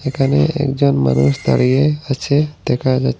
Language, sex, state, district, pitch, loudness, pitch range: Bengali, male, Assam, Hailakandi, 135 Hz, -16 LUFS, 125-145 Hz